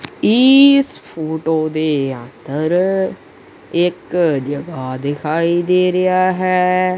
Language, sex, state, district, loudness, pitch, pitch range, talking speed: Punjabi, male, Punjab, Kapurthala, -16 LUFS, 175 Hz, 155-185 Hz, 85 wpm